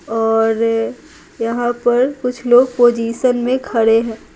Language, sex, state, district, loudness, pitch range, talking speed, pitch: Hindi, female, Bihar, Patna, -16 LUFS, 225-250 Hz, 125 wpm, 240 Hz